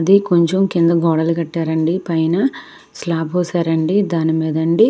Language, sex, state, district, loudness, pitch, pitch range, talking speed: Telugu, female, Andhra Pradesh, Krishna, -17 LUFS, 170 Hz, 160-180 Hz, 120 wpm